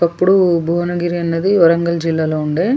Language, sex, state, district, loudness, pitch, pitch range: Telugu, female, Telangana, Nalgonda, -15 LUFS, 170 Hz, 165-175 Hz